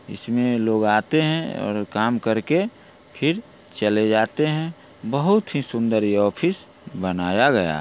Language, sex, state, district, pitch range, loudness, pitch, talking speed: Hindi, male, Bihar, Muzaffarpur, 105-155 Hz, -21 LUFS, 115 Hz, 145 wpm